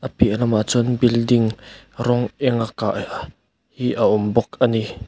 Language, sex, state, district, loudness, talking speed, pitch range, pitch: Mizo, male, Mizoram, Aizawl, -20 LUFS, 165 wpm, 110-120 Hz, 115 Hz